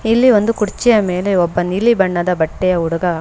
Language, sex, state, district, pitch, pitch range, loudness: Kannada, female, Karnataka, Bangalore, 185 Hz, 175-220 Hz, -15 LUFS